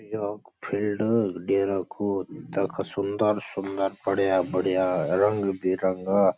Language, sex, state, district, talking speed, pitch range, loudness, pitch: Garhwali, male, Uttarakhand, Uttarkashi, 115 wpm, 95-105 Hz, -26 LUFS, 100 Hz